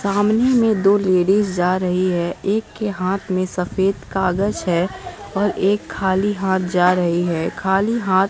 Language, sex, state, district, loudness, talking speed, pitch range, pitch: Hindi, female, Bihar, Katihar, -19 LUFS, 175 wpm, 180-200 Hz, 190 Hz